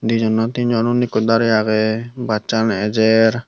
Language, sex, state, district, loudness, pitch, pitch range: Chakma, male, Tripura, Unakoti, -17 LUFS, 110 Hz, 110-115 Hz